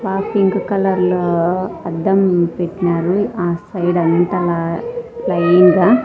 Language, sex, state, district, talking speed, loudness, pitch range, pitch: Telugu, female, Andhra Pradesh, Sri Satya Sai, 110 wpm, -16 LUFS, 170-195 Hz, 180 Hz